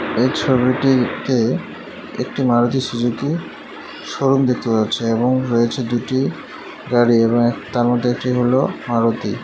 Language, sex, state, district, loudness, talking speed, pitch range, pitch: Bengali, male, West Bengal, Alipurduar, -18 LUFS, 120 wpm, 115-130 Hz, 120 Hz